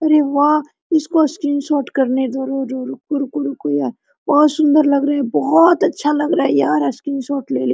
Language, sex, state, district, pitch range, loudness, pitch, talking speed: Hindi, female, Jharkhand, Sahebganj, 260-300 Hz, -17 LUFS, 280 Hz, 180 wpm